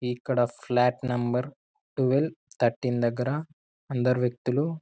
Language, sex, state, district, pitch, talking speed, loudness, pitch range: Telugu, male, Telangana, Karimnagar, 125 Hz, 100 wpm, -27 LUFS, 125-140 Hz